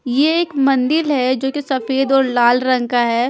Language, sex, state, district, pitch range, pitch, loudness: Hindi, female, Punjab, Fazilka, 250-280 Hz, 265 Hz, -16 LUFS